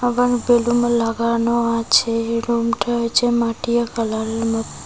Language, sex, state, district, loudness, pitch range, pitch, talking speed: Bengali, female, West Bengal, Cooch Behar, -19 LUFS, 230-240 Hz, 235 Hz, 110 wpm